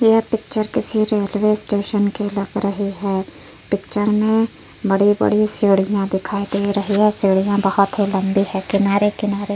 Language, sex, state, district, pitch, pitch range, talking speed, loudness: Hindi, female, Uttar Pradesh, Jyotiba Phule Nagar, 205 Hz, 200-210 Hz, 150 wpm, -18 LUFS